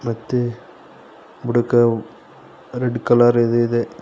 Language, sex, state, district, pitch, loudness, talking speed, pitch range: Kannada, male, Karnataka, Koppal, 120 Hz, -18 LUFS, 90 wpm, 120-125 Hz